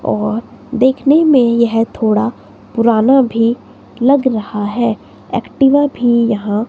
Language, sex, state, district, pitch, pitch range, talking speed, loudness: Hindi, female, Himachal Pradesh, Shimla, 235 Hz, 225-260 Hz, 115 wpm, -14 LUFS